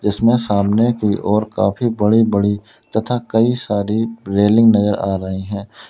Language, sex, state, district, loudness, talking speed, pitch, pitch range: Hindi, male, Uttar Pradesh, Lalitpur, -17 LUFS, 155 wpm, 105 Hz, 100-115 Hz